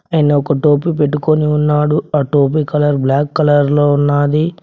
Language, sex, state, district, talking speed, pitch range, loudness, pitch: Telugu, male, Telangana, Mahabubabad, 155 wpm, 145-150 Hz, -13 LUFS, 150 Hz